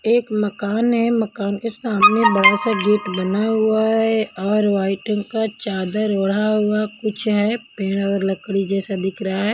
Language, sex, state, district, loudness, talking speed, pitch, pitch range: Hindi, female, Punjab, Kapurthala, -19 LUFS, 170 wpm, 210 Hz, 195-220 Hz